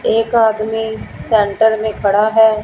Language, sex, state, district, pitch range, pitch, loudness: Hindi, female, Punjab, Fazilka, 210-225 Hz, 220 Hz, -15 LUFS